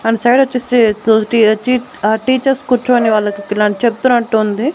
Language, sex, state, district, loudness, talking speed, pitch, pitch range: Telugu, female, Andhra Pradesh, Annamaya, -13 LUFS, 125 wpm, 230 Hz, 215-250 Hz